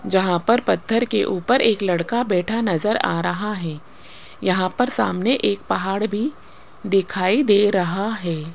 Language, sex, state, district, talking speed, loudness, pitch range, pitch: Hindi, female, Rajasthan, Jaipur, 155 wpm, -20 LUFS, 175-225 Hz, 195 Hz